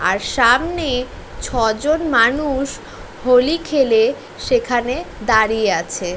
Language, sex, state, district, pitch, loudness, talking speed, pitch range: Bengali, female, West Bengal, North 24 Parganas, 255 Hz, -17 LUFS, 95 wpm, 230-310 Hz